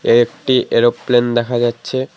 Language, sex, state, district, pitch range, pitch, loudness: Bengali, male, West Bengal, Alipurduar, 120-125 Hz, 120 Hz, -15 LUFS